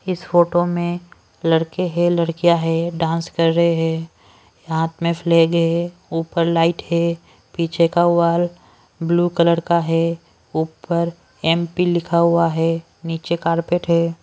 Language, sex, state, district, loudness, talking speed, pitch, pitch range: Hindi, female, Maharashtra, Washim, -19 LUFS, 140 wpm, 170 Hz, 165-170 Hz